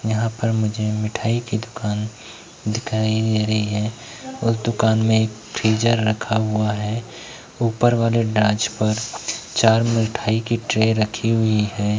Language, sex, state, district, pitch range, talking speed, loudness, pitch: Hindi, male, Uttar Pradesh, Etah, 110-115 Hz, 140 wpm, -20 LUFS, 110 Hz